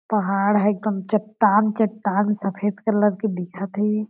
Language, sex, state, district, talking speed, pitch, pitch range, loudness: Chhattisgarhi, female, Chhattisgarh, Jashpur, 130 wpm, 210 Hz, 200-215 Hz, -21 LUFS